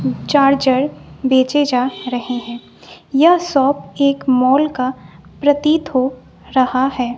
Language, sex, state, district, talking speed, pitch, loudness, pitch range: Hindi, female, Bihar, West Champaran, 115 wpm, 265 Hz, -16 LUFS, 255-285 Hz